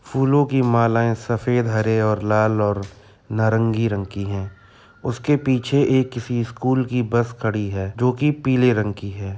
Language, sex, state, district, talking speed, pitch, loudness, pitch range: Hindi, male, Uttar Pradesh, Jyotiba Phule Nagar, 175 wpm, 115 Hz, -20 LUFS, 105-125 Hz